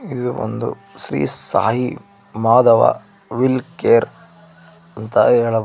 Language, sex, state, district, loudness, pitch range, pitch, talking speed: Kannada, male, Karnataka, Koppal, -16 LUFS, 110-125 Hz, 115 Hz, 95 wpm